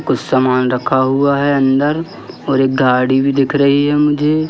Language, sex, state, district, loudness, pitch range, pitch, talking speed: Hindi, male, Madhya Pradesh, Katni, -14 LUFS, 130-145 Hz, 140 Hz, 185 wpm